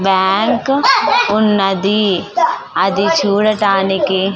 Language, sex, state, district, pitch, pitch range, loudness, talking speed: Telugu, female, Andhra Pradesh, Sri Satya Sai, 200 Hz, 195-215 Hz, -13 LUFS, 70 wpm